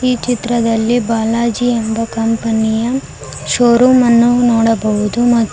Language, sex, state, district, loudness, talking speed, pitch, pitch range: Kannada, female, Karnataka, Koppal, -13 LUFS, 120 wpm, 235 Hz, 225-240 Hz